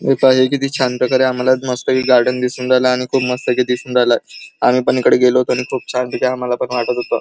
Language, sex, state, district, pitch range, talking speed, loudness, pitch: Marathi, male, Maharashtra, Chandrapur, 125-130 Hz, 235 wpm, -15 LUFS, 125 Hz